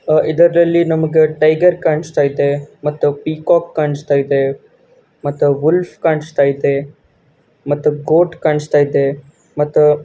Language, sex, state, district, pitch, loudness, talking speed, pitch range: Kannada, male, Karnataka, Gulbarga, 150 Hz, -15 LUFS, 115 wpm, 145-160 Hz